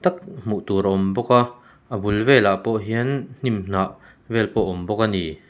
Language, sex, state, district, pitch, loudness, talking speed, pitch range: Mizo, male, Mizoram, Aizawl, 110 Hz, -21 LUFS, 185 wpm, 100-125 Hz